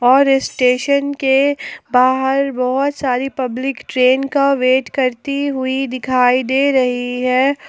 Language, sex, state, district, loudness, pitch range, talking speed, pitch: Hindi, female, Jharkhand, Palamu, -16 LUFS, 255-275 Hz, 125 wpm, 265 Hz